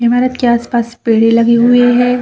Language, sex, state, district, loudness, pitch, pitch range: Hindi, female, Bihar, Saran, -11 LUFS, 240 Hz, 235-245 Hz